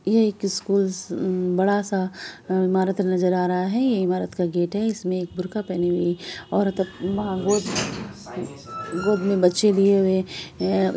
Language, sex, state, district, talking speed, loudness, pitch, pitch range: Hindi, female, Bihar, Araria, 155 wpm, -23 LUFS, 185 Hz, 180-200 Hz